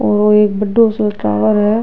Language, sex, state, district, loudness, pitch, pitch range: Rajasthani, female, Rajasthan, Nagaur, -13 LUFS, 210 Hz, 205-215 Hz